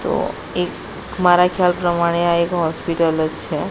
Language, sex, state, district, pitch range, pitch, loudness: Gujarati, female, Gujarat, Gandhinagar, 165-175 Hz, 170 Hz, -18 LUFS